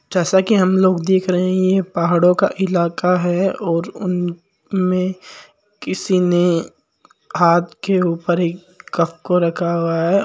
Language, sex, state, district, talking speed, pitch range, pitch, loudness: Marwari, male, Rajasthan, Nagaur, 150 wpm, 175-190 Hz, 180 Hz, -17 LUFS